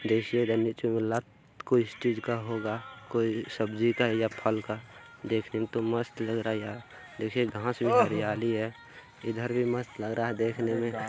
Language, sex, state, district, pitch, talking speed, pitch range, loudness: Hindi, male, Bihar, Bhagalpur, 115 Hz, 170 wpm, 110-115 Hz, -30 LUFS